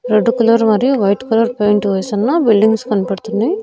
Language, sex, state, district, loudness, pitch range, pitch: Telugu, female, Andhra Pradesh, Annamaya, -14 LUFS, 210-235 Hz, 220 Hz